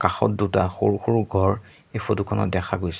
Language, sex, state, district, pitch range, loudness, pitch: Assamese, male, Assam, Sonitpur, 95-105 Hz, -23 LUFS, 100 Hz